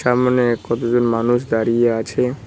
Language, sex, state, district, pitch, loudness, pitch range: Bengali, male, West Bengal, Cooch Behar, 120 Hz, -18 LUFS, 115-125 Hz